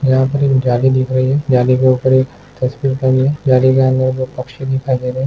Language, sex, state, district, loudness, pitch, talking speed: Hindi, male, Andhra Pradesh, Chittoor, -14 LUFS, 130 Hz, 275 wpm